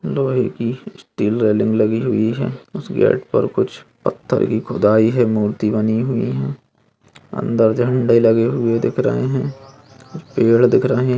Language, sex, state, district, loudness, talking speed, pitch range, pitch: Hindi, male, Bihar, Purnia, -17 LUFS, 165 wpm, 110-125 Hz, 115 Hz